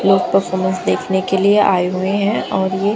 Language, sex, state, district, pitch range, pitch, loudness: Hindi, female, Haryana, Jhajjar, 185-200 Hz, 190 Hz, -16 LUFS